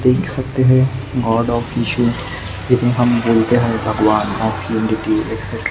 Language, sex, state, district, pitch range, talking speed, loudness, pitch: Hindi, male, Maharashtra, Gondia, 110-120 Hz, 125 wpm, -17 LUFS, 115 Hz